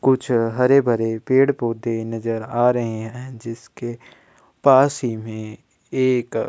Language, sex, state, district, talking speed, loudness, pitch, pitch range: Hindi, male, Chhattisgarh, Sukma, 150 wpm, -20 LUFS, 120 Hz, 115-130 Hz